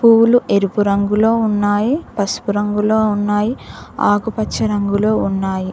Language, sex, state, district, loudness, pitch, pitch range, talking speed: Telugu, female, Telangana, Mahabubabad, -16 LUFS, 210 Hz, 200-220 Hz, 105 wpm